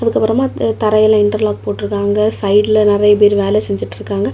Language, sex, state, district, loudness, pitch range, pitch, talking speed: Tamil, female, Tamil Nadu, Kanyakumari, -14 LUFS, 205-215 Hz, 210 Hz, 125 wpm